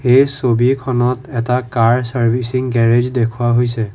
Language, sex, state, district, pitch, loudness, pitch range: Assamese, male, Assam, Kamrup Metropolitan, 120 Hz, -15 LUFS, 120-130 Hz